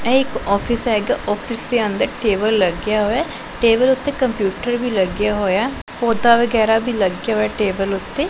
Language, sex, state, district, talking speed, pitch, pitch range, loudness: Punjabi, female, Punjab, Pathankot, 165 wpm, 220 Hz, 205-240 Hz, -18 LUFS